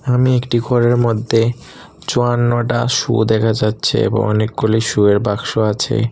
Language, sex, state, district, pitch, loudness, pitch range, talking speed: Bengali, male, Tripura, Unakoti, 115 Hz, -16 LUFS, 110-120 Hz, 135 wpm